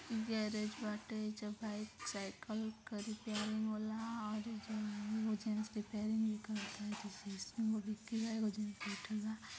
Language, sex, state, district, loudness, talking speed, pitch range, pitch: Bhojpuri, female, Uttar Pradesh, Deoria, -42 LUFS, 130 wpm, 210-220 Hz, 215 Hz